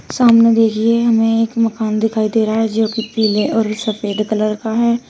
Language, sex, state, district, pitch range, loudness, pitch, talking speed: Hindi, female, Uttar Pradesh, Shamli, 215-230 Hz, -15 LUFS, 225 Hz, 200 wpm